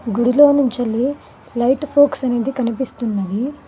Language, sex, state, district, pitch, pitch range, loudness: Telugu, female, Telangana, Mahabubabad, 255 Hz, 235-280 Hz, -17 LUFS